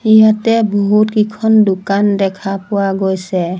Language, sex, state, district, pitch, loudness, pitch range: Assamese, female, Assam, Sonitpur, 200 Hz, -13 LUFS, 195-215 Hz